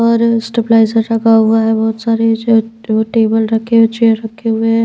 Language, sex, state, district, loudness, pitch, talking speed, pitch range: Hindi, female, Bihar, Patna, -12 LUFS, 225 Hz, 175 wpm, 225-230 Hz